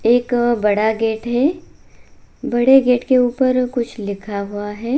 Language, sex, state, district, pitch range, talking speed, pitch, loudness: Hindi, female, Bihar, Bhagalpur, 215-255 Hz, 145 wpm, 240 Hz, -17 LUFS